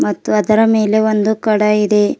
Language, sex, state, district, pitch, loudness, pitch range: Kannada, female, Karnataka, Bidar, 215 Hz, -14 LUFS, 210-215 Hz